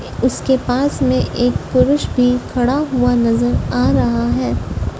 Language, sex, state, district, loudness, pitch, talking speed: Hindi, female, Madhya Pradesh, Dhar, -16 LUFS, 240 Hz, 145 wpm